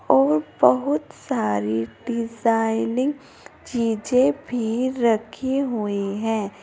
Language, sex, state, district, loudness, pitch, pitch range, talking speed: Hindi, female, Uttar Pradesh, Saharanpur, -22 LUFS, 225 Hz, 150-240 Hz, 80 wpm